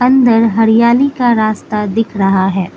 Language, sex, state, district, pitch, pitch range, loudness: Hindi, female, Manipur, Imphal West, 225 Hz, 210-240 Hz, -12 LUFS